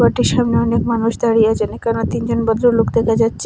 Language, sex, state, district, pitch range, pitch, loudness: Bengali, female, Assam, Hailakandi, 225-230 Hz, 230 Hz, -16 LUFS